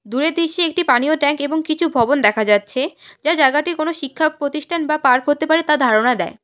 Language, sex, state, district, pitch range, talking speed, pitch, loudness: Bengali, female, West Bengal, Alipurduar, 255-315 Hz, 205 wpm, 295 Hz, -17 LUFS